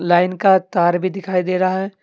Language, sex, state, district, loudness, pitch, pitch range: Hindi, male, Jharkhand, Deoghar, -17 LUFS, 185 Hz, 180-190 Hz